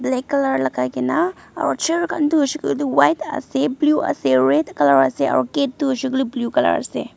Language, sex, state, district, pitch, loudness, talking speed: Nagamese, female, Nagaland, Dimapur, 270 Hz, -19 LUFS, 235 wpm